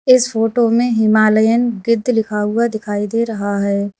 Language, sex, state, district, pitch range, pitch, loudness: Hindi, female, Uttar Pradesh, Lalitpur, 210-235 Hz, 225 Hz, -15 LUFS